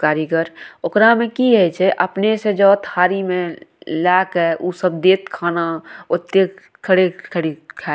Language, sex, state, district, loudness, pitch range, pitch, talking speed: Maithili, female, Bihar, Madhepura, -17 LUFS, 170-195 Hz, 180 Hz, 160 wpm